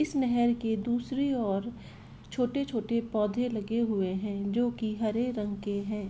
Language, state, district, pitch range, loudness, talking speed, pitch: Santali, Jharkhand, Sahebganj, 210-240 Hz, -30 LUFS, 155 wpm, 230 Hz